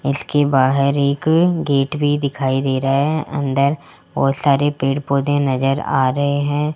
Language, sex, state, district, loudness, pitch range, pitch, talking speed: Hindi, male, Rajasthan, Jaipur, -17 LUFS, 135-145 Hz, 140 Hz, 150 wpm